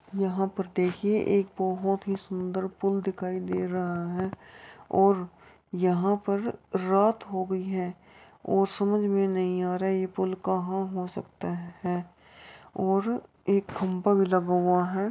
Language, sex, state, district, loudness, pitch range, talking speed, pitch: Hindi, female, Uttar Pradesh, Jyotiba Phule Nagar, -28 LUFS, 185-195 Hz, 150 wpm, 190 Hz